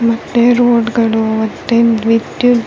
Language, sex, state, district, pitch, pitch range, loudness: Kannada, female, Karnataka, Dharwad, 230 Hz, 225-240 Hz, -13 LUFS